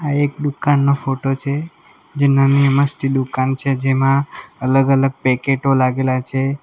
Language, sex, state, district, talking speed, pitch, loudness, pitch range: Gujarati, male, Gujarat, Valsad, 155 wpm, 135 Hz, -17 LUFS, 135-140 Hz